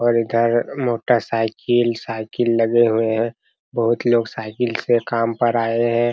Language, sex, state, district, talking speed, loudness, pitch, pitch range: Hindi, male, Bihar, Araria, 155 wpm, -19 LUFS, 115 Hz, 115-120 Hz